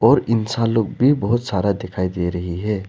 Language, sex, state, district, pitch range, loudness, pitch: Hindi, male, Arunachal Pradesh, Lower Dibang Valley, 90-115 Hz, -20 LUFS, 105 Hz